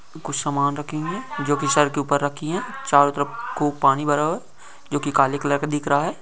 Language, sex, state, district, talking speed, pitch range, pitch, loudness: Hindi, male, Maharashtra, Solapur, 240 wpm, 145-155 Hz, 145 Hz, -22 LUFS